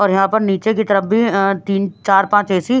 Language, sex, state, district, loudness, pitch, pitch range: Hindi, female, Haryana, Jhajjar, -15 LUFS, 200 Hz, 195-215 Hz